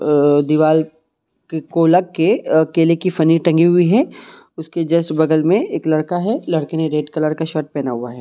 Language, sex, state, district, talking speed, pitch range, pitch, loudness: Hindi, male, Jharkhand, Sahebganj, 195 wpm, 155-165 Hz, 160 Hz, -16 LUFS